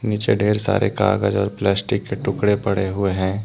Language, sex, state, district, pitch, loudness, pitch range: Hindi, male, Jharkhand, Deoghar, 100 Hz, -20 LUFS, 100-105 Hz